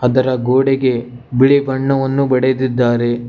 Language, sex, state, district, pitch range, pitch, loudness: Kannada, male, Karnataka, Bangalore, 125-135 Hz, 130 Hz, -15 LUFS